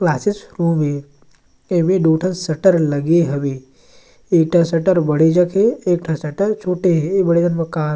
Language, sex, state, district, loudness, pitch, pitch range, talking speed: Chhattisgarhi, male, Chhattisgarh, Sarguja, -17 LUFS, 170 Hz, 155-185 Hz, 175 wpm